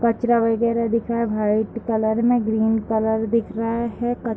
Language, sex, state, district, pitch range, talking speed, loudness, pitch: Hindi, female, Uttar Pradesh, Deoria, 220-235 Hz, 190 wpm, -21 LUFS, 230 Hz